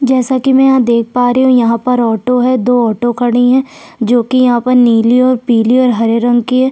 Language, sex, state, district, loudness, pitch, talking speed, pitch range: Hindi, female, Chhattisgarh, Sukma, -11 LUFS, 245 Hz, 250 wpm, 235-255 Hz